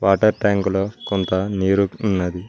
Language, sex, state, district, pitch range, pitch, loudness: Telugu, male, Telangana, Mahabubabad, 95-100 Hz, 95 Hz, -20 LUFS